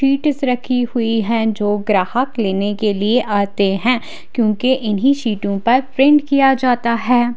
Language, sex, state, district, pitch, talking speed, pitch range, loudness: Hindi, female, Haryana, Charkhi Dadri, 235 Hz, 155 wpm, 210-260 Hz, -16 LUFS